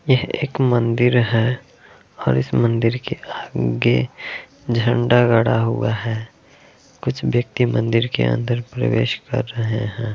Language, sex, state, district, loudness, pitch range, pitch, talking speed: Hindi, male, Uttar Pradesh, Varanasi, -19 LUFS, 110-125 Hz, 115 Hz, 130 wpm